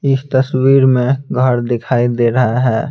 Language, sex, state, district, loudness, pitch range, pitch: Hindi, male, Bihar, Patna, -14 LUFS, 120-135 Hz, 130 Hz